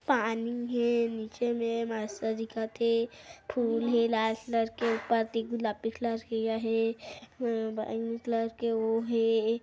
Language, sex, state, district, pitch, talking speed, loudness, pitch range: Hindi, female, Chhattisgarh, Kabirdham, 230 Hz, 145 wpm, -31 LUFS, 225-235 Hz